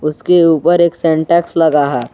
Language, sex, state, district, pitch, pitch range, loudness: Hindi, male, Jharkhand, Garhwa, 165 Hz, 150-170 Hz, -12 LUFS